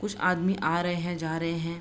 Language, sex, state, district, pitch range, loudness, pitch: Hindi, female, Bihar, Begusarai, 165-180 Hz, -28 LUFS, 170 Hz